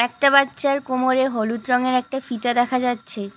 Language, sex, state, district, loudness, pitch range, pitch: Bengali, female, West Bengal, Cooch Behar, -20 LUFS, 240-265 Hz, 250 Hz